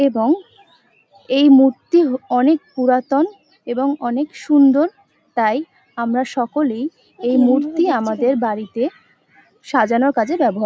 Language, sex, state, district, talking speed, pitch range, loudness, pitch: Bengali, female, West Bengal, North 24 Parganas, 100 wpm, 245-305 Hz, -17 LUFS, 270 Hz